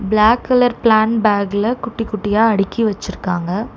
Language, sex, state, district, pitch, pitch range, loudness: Tamil, female, Tamil Nadu, Chennai, 215 Hz, 200-225 Hz, -16 LUFS